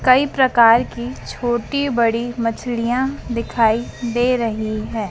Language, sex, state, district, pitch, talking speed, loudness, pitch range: Hindi, female, Madhya Pradesh, Dhar, 235 Hz, 115 wpm, -19 LUFS, 225-250 Hz